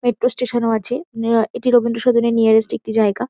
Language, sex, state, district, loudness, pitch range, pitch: Bengali, female, West Bengal, Kolkata, -17 LUFS, 225-245 Hz, 235 Hz